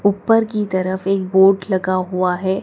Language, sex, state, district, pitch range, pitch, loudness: Hindi, female, Madhya Pradesh, Dhar, 185-200 Hz, 190 Hz, -17 LUFS